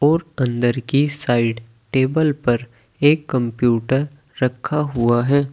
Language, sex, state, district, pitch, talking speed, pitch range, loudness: Hindi, male, Uttar Pradesh, Saharanpur, 130 Hz, 120 wpm, 120-145 Hz, -19 LUFS